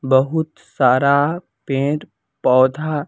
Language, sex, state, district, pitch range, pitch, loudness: Hindi, female, Bihar, West Champaran, 130-155 Hz, 145 Hz, -18 LUFS